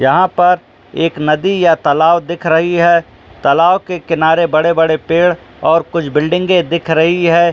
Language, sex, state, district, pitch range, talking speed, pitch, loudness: Hindi, male, Jharkhand, Jamtara, 160-175 Hz, 165 wpm, 170 Hz, -12 LUFS